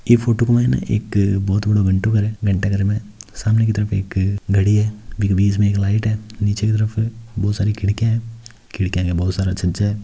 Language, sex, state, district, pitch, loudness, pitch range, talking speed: Hindi, male, Rajasthan, Nagaur, 105 Hz, -19 LUFS, 100-110 Hz, 190 wpm